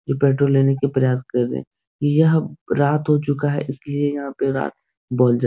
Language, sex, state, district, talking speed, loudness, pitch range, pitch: Hindi, male, Bihar, Supaul, 195 wpm, -20 LUFS, 135-145 Hz, 140 Hz